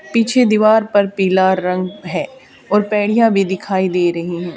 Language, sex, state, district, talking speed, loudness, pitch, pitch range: Hindi, female, Haryana, Charkhi Dadri, 170 wpm, -15 LUFS, 195 Hz, 185-215 Hz